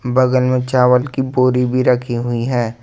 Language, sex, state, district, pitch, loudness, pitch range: Hindi, male, Jharkhand, Ranchi, 125 Hz, -16 LUFS, 125-130 Hz